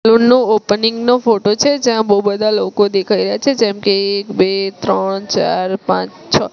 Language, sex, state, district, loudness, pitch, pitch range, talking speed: Gujarati, female, Gujarat, Gandhinagar, -14 LUFS, 205 Hz, 200-225 Hz, 130 wpm